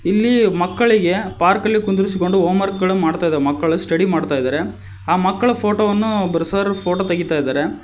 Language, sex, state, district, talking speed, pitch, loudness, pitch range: Kannada, male, Karnataka, Koppal, 160 wpm, 185 Hz, -17 LUFS, 165-200 Hz